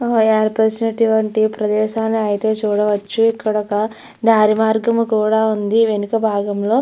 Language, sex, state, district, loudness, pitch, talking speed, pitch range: Telugu, female, Andhra Pradesh, Chittoor, -17 LUFS, 220 Hz, 125 wpm, 215-225 Hz